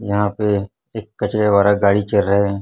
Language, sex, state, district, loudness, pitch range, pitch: Hindi, male, Chhattisgarh, Raipur, -17 LUFS, 100-105 Hz, 100 Hz